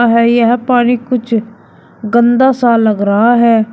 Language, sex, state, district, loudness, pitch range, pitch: Hindi, male, Uttar Pradesh, Shamli, -11 LUFS, 225-240 Hz, 235 Hz